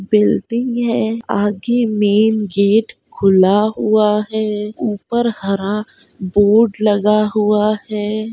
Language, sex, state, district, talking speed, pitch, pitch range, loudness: Hindi, female, Bihar, Saharsa, 100 wpm, 210 Hz, 205-220 Hz, -16 LUFS